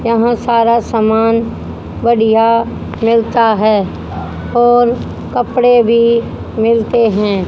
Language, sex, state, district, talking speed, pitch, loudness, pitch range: Hindi, female, Haryana, Rohtak, 90 wpm, 230 Hz, -12 LUFS, 225-235 Hz